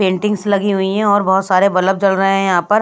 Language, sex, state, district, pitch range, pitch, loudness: Hindi, female, Bihar, Patna, 190-205 Hz, 195 Hz, -14 LUFS